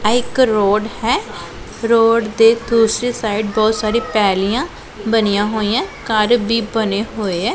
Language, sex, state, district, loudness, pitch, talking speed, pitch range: Punjabi, female, Punjab, Pathankot, -16 LUFS, 220 Hz, 145 wpm, 210-230 Hz